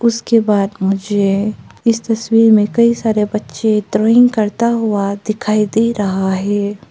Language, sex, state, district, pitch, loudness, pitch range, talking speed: Hindi, female, Arunachal Pradesh, Papum Pare, 215 Hz, -15 LUFS, 205-225 Hz, 140 wpm